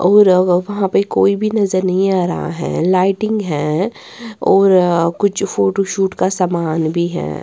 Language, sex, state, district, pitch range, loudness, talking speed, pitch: Hindi, female, Bihar, West Champaran, 175-200 Hz, -15 LUFS, 160 wpm, 185 Hz